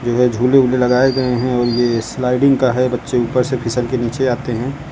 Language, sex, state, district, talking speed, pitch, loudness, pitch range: Hindi, female, Uttar Pradesh, Lucknow, 230 wpm, 125 Hz, -16 LUFS, 120-130 Hz